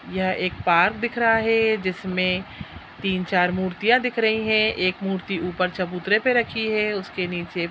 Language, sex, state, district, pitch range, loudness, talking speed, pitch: Hindi, female, Chhattisgarh, Raigarh, 185-220 Hz, -22 LUFS, 170 wpm, 190 Hz